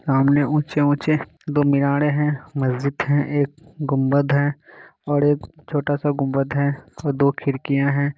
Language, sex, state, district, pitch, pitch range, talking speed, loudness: Hindi, male, Bihar, Kishanganj, 145 Hz, 140-145 Hz, 140 wpm, -21 LUFS